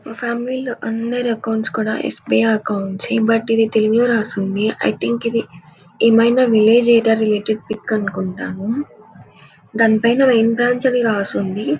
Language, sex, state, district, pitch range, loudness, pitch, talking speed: Telugu, female, Andhra Pradesh, Anantapur, 215-235 Hz, -17 LUFS, 225 Hz, 140 wpm